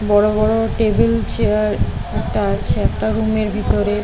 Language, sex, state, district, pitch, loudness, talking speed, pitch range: Bengali, female, West Bengal, Kolkata, 210 Hz, -18 LUFS, 165 wpm, 205-215 Hz